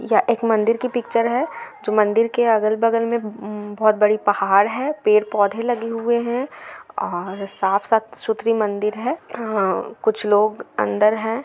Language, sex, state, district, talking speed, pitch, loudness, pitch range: Hindi, female, Bihar, Gaya, 160 wpm, 220 Hz, -20 LUFS, 210-235 Hz